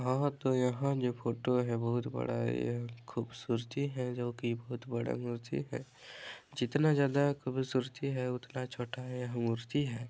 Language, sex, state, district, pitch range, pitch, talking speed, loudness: Hindi, male, Chhattisgarh, Balrampur, 115-130 Hz, 125 Hz, 155 wpm, -35 LUFS